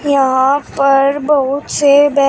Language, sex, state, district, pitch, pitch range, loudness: Hindi, female, Uttar Pradesh, Shamli, 280 Hz, 275-290 Hz, -12 LUFS